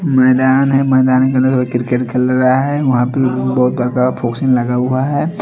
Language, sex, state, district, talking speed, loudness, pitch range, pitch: Hindi, male, Chandigarh, Chandigarh, 155 wpm, -14 LUFS, 125-130 Hz, 130 Hz